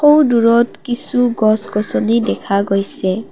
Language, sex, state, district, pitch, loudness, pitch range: Assamese, female, Assam, Kamrup Metropolitan, 230 Hz, -15 LUFS, 210-245 Hz